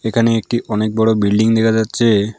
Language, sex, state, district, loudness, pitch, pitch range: Bengali, male, West Bengal, Alipurduar, -15 LUFS, 110 Hz, 105-115 Hz